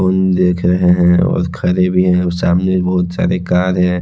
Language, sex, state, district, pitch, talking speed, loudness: Hindi, male, Chhattisgarh, Raipur, 90 Hz, 195 wpm, -14 LUFS